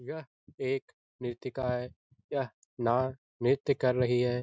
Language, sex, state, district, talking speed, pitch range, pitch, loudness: Hindi, male, Bihar, Lakhisarai, 135 wpm, 125-130 Hz, 125 Hz, -32 LUFS